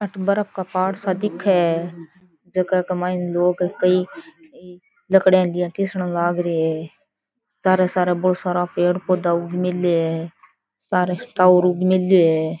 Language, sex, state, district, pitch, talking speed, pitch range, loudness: Rajasthani, female, Rajasthan, Churu, 180 Hz, 150 wpm, 175-185 Hz, -19 LUFS